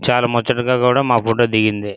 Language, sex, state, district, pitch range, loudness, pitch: Telugu, male, Andhra Pradesh, Srikakulam, 110-125 Hz, -16 LUFS, 120 Hz